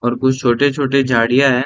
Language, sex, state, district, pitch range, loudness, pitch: Hindi, male, Bihar, Sitamarhi, 120-140 Hz, -15 LUFS, 130 Hz